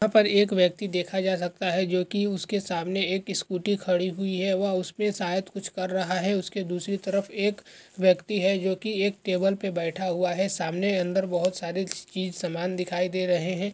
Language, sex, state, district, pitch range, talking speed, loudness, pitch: Hindi, male, Uttar Pradesh, Gorakhpur, 180-195 Hz, 215 wpm, -27 LUFS, 190 Hz